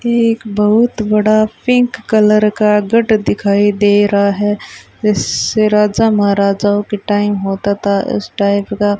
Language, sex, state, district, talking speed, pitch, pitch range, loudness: Hindi, female, Rajasthan, Bikaner, 145 wpm, 210 Hz, 205-215 Hz, -13 LUFS